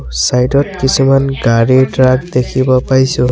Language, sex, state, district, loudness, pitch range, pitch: Assamese, male, Assam, Sonitpur, -11 LUFS, 125-135 Hz, 130 Hz